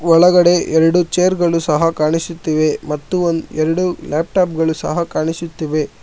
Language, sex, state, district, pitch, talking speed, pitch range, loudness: Kannada, male, Karnataka, Bangalore, 165 Hz, 130 wpm, 155-175 Hz, -16 LUFS